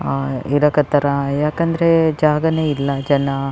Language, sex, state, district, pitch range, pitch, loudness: Kannada, female, Karnataka, Raichur, 140-155 Hz, 145 Hz, -17 LUFS